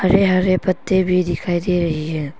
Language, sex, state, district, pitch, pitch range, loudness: Hindi, female, Arunachal Pradesh, Papum Pare, 180 Hz, 170-185 Hz, -18 LUFS